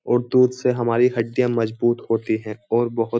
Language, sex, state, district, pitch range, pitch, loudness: Hindi, male, Uttar Pradesh, Jyotiba Phule Nagar, 115-120 Hz, 120 Hz, -21 LUFS